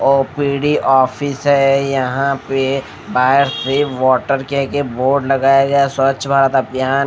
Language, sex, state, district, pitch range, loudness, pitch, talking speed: Hindi, male, Odisha, Nuapada, 135-140 Hz, -15 LUFS, 135 Hz, 145 wpm